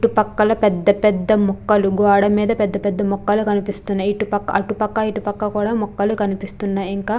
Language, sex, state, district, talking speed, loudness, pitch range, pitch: Telugu, female, Andhra Pradesh, Krishna, 110 wpm, -18 LUFS, 200-215 Hz, 205 Hz